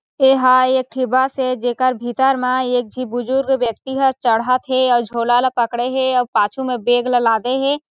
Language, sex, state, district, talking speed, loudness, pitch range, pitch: Chhattisgarhi, female, Chhattisgarh, Sarguja, 205 wpm, -17 LUFS, 245-260 Hz, 255 Hz